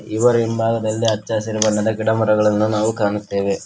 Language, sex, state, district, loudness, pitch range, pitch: Kannada, male, Karnataka, Koppal, -18 LUFS, 105-110 Hz, 110 Hz